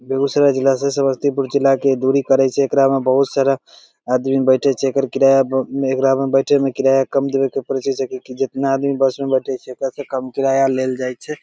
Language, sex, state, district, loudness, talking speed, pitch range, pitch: Maithili, male, Bihar, Begusarai, -17 LUFS, 215 wpm, 130-135 Hz, 135 Hz